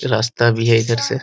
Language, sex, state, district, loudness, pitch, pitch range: Hindi, male, Bihar, Muzaffarpur, -16 LUFS, 115 Hz, 115-120 Hz